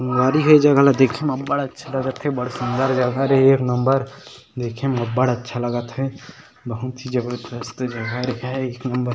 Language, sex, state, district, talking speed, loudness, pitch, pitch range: Chhattisgarhi, male, Chhattisgarh, Sarguja, 190 wpm, -20 LUFS, 130 Hz, 125-135 Hz